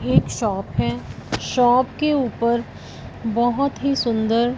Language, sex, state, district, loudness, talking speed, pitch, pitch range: Hindi, female, Punjab, Fazilka, -21 LUFS, 130 wpm, 235 Hz, 160-250 Hz